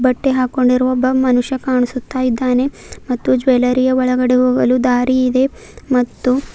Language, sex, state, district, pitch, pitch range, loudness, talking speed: Kannada, female, Karnataka, Bidar, 255 Hz, 250-260 Hz, -15 LUFS, 120 wpm